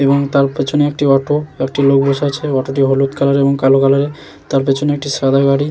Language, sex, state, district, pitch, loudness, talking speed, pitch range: Bengali, male, West Bengal, Jalpaiguri, 140 Hz, -14 LUFS, 220 wpm, 135-145 Hz